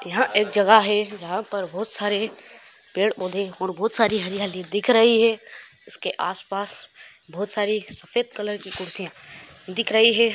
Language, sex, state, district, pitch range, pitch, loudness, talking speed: Hindi, male, Maharashtra, Solapur, 190-220 Hz, 205 Hz, -22 LUFS, 155 wpm